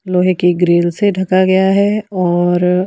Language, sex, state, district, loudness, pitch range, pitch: Hindi, female, Himachal Pradesh, Shimla, -13 LUFS, 175-190 Hz, 185 Hz